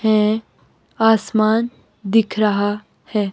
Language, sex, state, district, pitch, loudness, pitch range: Hindi, female, Himachal Pradesh, Shimla, 215 Hz, -18 LUFS, 210-225 Hz